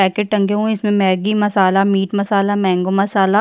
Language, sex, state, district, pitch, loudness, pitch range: Hindi, female, Chhattisgarh, Jashpur, 200 Hz, -16 LUFS, 195-210 Hz